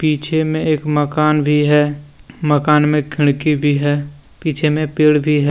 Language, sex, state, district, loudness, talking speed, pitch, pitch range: Hindi, male, Jharkhand, Deoghar, -16 LUFS, 175 wpm, 150 Hz, 145-155 Hz